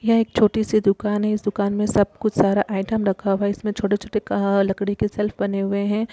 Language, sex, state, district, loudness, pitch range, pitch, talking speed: Hindi, female, Chhattisgarh, Kabirdham, -21 LUFS, 200-215 Hz, 205 Hz, 245 wpm